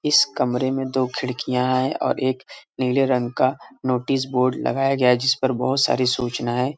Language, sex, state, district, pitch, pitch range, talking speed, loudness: Hindi, male, Uttar Pradesh, Varanasi, 130 Hz, 125-135 Hz, 195 wpm, -21 LUFS